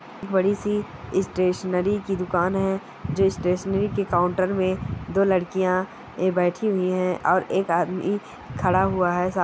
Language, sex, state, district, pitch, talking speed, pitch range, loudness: Hindi, female, Bihar, East Champaran, 185 Hz, 145 wpm, 180-195 Hz, -23 LUFS